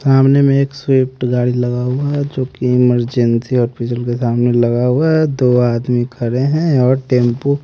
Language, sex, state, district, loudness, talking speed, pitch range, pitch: Hindi, male, Haryana, Rohtak, -15 LUFS, 190 wpm, 120-135 Hz, 125 Hz